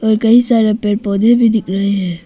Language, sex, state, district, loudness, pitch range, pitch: Hindi, female, Arunachal Pradesh, Papum Pare, -13 LUFS, 200-225 Hz, 215 Hz